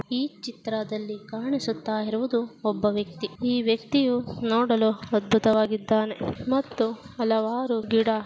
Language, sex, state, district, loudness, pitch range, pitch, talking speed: Kannada, female, Karnataka, Dakshina Kannada, -26 LUFS, 215-240 Hz, 225 Hz, 95 wpm